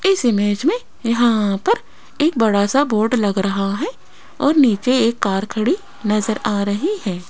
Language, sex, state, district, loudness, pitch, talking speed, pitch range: Hindi, female, Rajasthan, Jaipur, -18 LUFS, 225 Hz, 175 wpm, 205-290 Hz